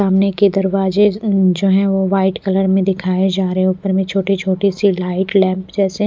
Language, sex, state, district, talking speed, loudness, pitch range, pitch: Hindi, female, Odisha, Malkangiri, 195 wpm, -15 LUFS, 190-195 Hz, 190 Hz